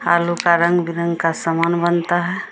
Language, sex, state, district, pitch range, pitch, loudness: Hindi, female, Bihar, Samastipur, 170-175 Hz, 170 Hz, -18 LUFS